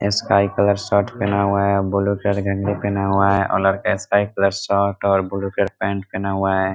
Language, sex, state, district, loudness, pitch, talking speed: Hindi, male, Bihar, Muzaffarpur, -19 LUFS, 100 Hz, 215 wpm